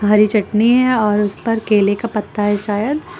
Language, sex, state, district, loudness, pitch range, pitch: Hindi, female, Uttar Pradesh, Lucknow, -16 LUFS, 205-230 Hz, 210 Hz